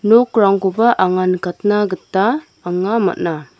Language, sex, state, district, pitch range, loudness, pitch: Garo, female, Meghalaya, North Garo Hills, 185-220 Hz, -16 LUFS, 195 Hz